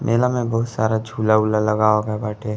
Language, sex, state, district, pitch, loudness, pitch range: Bhojpuri, male, Uttar Pradesh, Gorakhpur, 110 Hz, -19 LUFS, 110-115 Hz